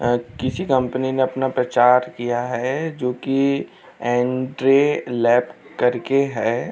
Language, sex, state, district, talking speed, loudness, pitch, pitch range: Hindi, male, Uttar Pradesh, Jalaun, 115 wpm, -20 LUFS, 125 Hz, 120-135 Hz